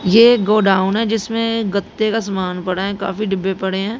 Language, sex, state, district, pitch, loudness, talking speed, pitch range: Hindi, female, Haryana, Jhajjar, 200 Hz, -17 LUFS, 195 wpm, 190-225 Hz